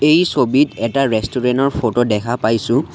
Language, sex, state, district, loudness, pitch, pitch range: Assamese, male, Assam, Sonitpur, -16 LUFS, 125 Hz, 115-135 Hz